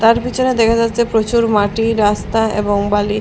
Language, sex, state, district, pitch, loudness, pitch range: Bengali, female, Assam, Hailakandi, 225 Hz, -15 LUFS, 210-230 Hz